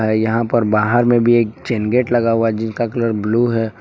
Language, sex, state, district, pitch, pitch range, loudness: Hindi, male, Jharkhand, Palamu, 115 Hz, 110-120 Hz, -16 LUFS